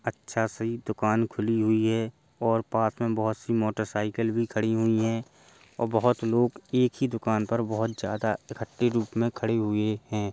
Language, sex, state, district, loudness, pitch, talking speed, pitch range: Hindi, male, Uttar Pradesh, Jalaun, -27 LUFS, 110 Hz, 185 wpm, 110-115 Hz